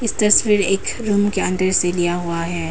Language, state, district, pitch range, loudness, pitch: Hindi, Arunachal Pradesh, Papum Pare, 175-210 Hz, -17 LUFS, 195 Hz